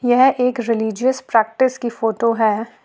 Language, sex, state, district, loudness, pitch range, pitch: Hindi, female, Jharkhand, Ranchi, -18 LUFS, 225-250 Hz, 235 Hz